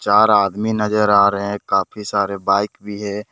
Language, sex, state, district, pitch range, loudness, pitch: Hindi, male, Jharkhand, Deoghar, 100-105 Hz, -17 LUFS, 105 Hz